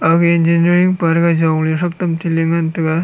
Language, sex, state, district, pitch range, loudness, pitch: Wancho, male, Arunachal Pradesh, Longding, 165-170 Hz, -14 LUFS, 165 Hz